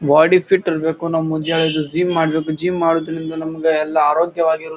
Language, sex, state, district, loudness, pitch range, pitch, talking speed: Kannada, male, Karnataka, Bijapur, -17 LUFS, 160-165 Hz, 160 Hz, 165 wpm